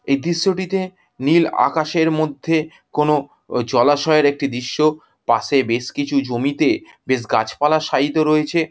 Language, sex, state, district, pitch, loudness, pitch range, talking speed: Bengali, female, West Bengal, Jhargram, 150 Hz, -18 LUFS, 130-160 Hz, 125 wpm